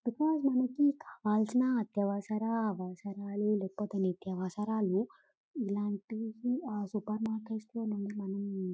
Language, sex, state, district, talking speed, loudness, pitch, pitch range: Telugu, female, Telangana, Karimnagar, 90 wpm, -34 LUFS, 210 Hz, 200-230 Hz